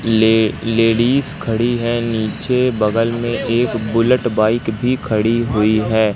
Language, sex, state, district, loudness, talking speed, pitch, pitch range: Hindi, male, Madhya Pradesh, Katni, -16 LUFS, 125 wpm, 115 Hz, 110-120 Hz